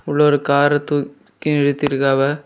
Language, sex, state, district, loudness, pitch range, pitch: Tamil, male, Tamil Nadu, Kanyakumari, -17 LUFS, 140-145 Hz, 145 Hz